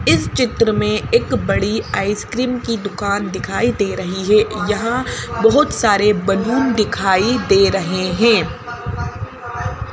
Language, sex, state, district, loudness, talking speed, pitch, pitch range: Hindi, female, Madhya Pradesh, Bhopal, -17 LUFS, 120 wpm, 210 Hz, 195-230 Hz